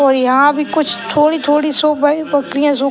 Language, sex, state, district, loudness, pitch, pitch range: Hindi, male, Bihar, Purnia, -14 LUFS, 290 Hz, 275-300 Hz